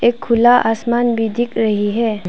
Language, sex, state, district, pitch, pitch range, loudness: Hindi, female, Arunachal Pradesh, Papum Pare, 230 Hz, 220-240 Hz, -15 LUFS